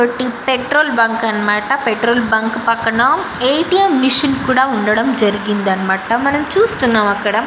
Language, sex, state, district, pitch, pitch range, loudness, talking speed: Telugu, female, Andhra Pradesh, Krishna, 235 Hz, 215-265 Hz, -14 LUFS, 130 wpm